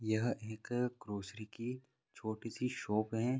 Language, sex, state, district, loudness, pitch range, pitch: Hindi, male, Bihar, Vaishali, -40 LUFS, 110-125 Hz, 115 Hz